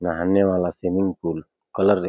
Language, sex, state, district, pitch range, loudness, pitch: Hindi, male, Uttar Pradesh, Deoria, 85-95 Hz, -22 LUFS, 90 Hz